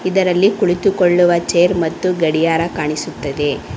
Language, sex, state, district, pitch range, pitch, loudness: Kannada, female, Karnataka, Bangalore, 160-180 Hz, 170 Hz, -16 LUFS